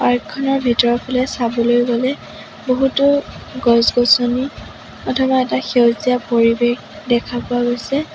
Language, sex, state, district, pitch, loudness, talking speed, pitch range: Assamese, female, Assam, Sonitpur, 245 Hz, -16 LUFS, 105 wpm, 240-260 Hz